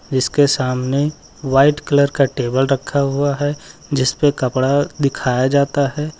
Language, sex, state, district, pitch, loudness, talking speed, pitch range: Hindi, male, Uttar Pradesh, Lucknow, 140 Hz, -17 LUFS, 135 wpm, 130-145 Hz